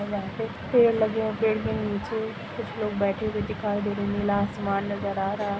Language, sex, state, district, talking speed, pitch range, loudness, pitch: Hindi, female, Chhattisgarh, Rajnandgaon, 225 wpm, 200-220 Hz, -27 LUFS, 205 Hz